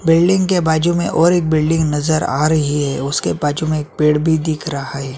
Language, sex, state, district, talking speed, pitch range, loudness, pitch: Hindi, male, Chhattisgarh, Sukma, 230 wpm, 145-165 Hz, -16 LUFS, 155 Hz